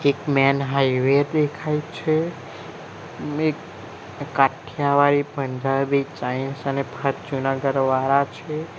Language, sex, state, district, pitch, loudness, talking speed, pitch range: Gujarati, male, Gujarat, Valsad, 140 Hz, -22 LUFS, 95 wpm, 135-150 Hz